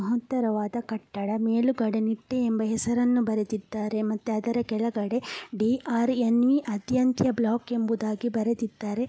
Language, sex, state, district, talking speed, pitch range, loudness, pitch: Kannada, female, Karnataka, Dakshina Kannada, 100 wpm, 220-240 Hz, -27 LUFS, 230 Hz